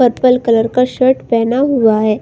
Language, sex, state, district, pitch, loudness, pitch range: Hindi, female, Uttar Pradesh, Budaun, 250 Hz, -13 LUFS, 230-255 Hz